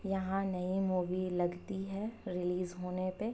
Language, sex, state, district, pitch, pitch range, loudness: Hindi, female, Uttar Pradesh, Jyotiba Phule Nagar, 185 Hz, 180-195 Hz, -36 LUFS